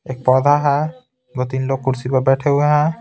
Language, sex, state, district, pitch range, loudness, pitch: Hindi, male, Bihar, Patna, 130-145 Hz, -17 LUFS, 135 Hz